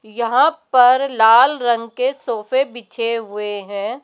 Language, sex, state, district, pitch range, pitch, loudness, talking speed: Hindi, female, Rajasthan, Jaipur, 225-265 Hz, 240 Hz, -17 LUFS, 135 wpm